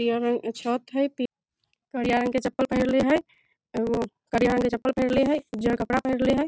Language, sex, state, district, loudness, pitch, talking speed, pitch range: Maithili, female, Bihar, Samastipur, -25 LUFS, 250 Hz, 110 wpm, 235-265 Hz